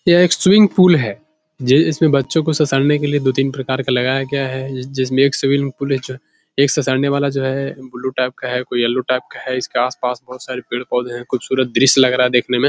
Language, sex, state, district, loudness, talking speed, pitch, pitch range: Hindi, male, Bihar, Jahanabad, -17 LUFS, 275 wpm, 130 Hz, 125-140 Hz